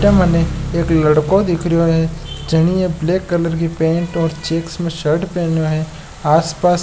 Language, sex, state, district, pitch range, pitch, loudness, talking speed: Marwari, male, Rajasthan, Nagaur, 160-175 Hz, 165 Hz, -16 LUFS, 165 wpm